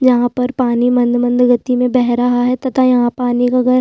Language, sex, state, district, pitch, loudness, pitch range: Hindi, female, Chhattisgarh, Sukma, 245 Hz, -14 LUFS, 245-250 Hz